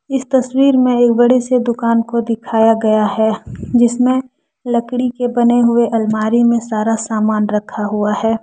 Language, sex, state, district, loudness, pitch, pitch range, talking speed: Hindi, female, Jharkhand, Deoghar, -15 LUFS, 235 Hz, 220-250 Hz, 165 wpm